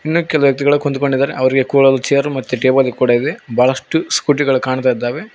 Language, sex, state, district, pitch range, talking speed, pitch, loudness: Kannada, male, Karnataka, Koppal, 130-145 Hz, 170 wpm, 135 Hz, -15 LUFS